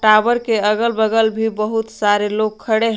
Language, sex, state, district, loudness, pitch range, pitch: Hindi, female, Jharkhand, Garhwa, -17 LUFS, 215-225 Hz, 220 Hz